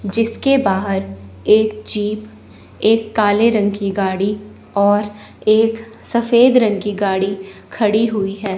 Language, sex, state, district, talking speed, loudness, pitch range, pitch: Hindi, male, Chandigarh, Chandigarh, 125 wpm, -16 LUFS, 195-220 Hz, 205 Hz